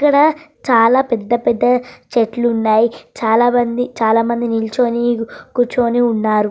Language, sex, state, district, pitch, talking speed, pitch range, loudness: Telugu, female, Andhra Pradesh, Srikakulam, 235 Hz, 100 wpm, 225-245 Hz, -15 LUFS